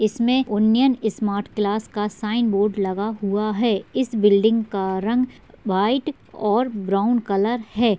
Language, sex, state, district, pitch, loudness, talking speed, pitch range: Hindi, female, Bihar, Darbhanga, 215 Hz, -21 LUFS, 145 wpm, 205-235 Hz